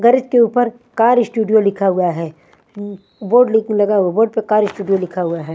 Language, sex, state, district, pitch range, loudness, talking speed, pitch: Hindi, female, Punjab, Fazilka, 195-235 Hz, -15 LUFS, 215 wpm, 210 Hz